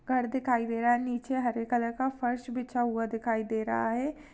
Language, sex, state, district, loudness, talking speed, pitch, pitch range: Hindi, female, Maharashtra, Aurangabad, -30 LUFS, 220 wpm, 240 Hz, 230-255 Hz